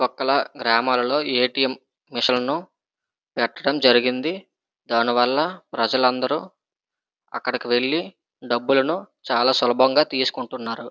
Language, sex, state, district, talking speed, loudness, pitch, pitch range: Telugu, male, Andhra Pradesh, Srikakulam, 90 wpm, -21 LUFS, 125 Hz, 120-135 Hz